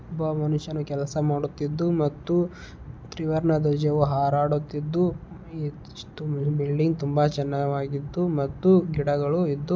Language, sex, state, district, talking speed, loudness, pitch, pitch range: Kannada, male, Karnataka, Belgaum, 90 wpm, -25 LUFS, 150 Hz, 145-160 Hz